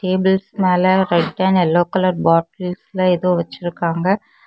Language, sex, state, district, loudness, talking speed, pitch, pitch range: Tamil, female, Tamil Nadu, Kanyakumari, -17 LUFS, 120 wpm, 185 Hz, 175-190 Hz